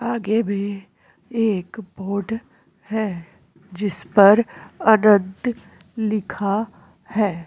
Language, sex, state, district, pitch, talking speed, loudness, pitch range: Hindi, female, Uttarakhand, Tehri Garhwal, 205 Hz, 80 wpm, -20 LUFS, 190-220 Hz